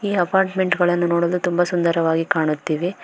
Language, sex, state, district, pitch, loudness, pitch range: Kannada, female, Karnataka, Bangalore, 175 Hz, -19 LUFS, 165-180 Hz